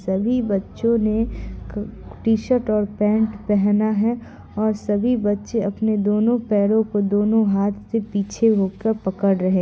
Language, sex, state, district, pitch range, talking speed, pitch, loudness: Hindi, female, Bihar, Purnia, 205-220 Hz, 145 wpm, 210 Hz, -20 LUFS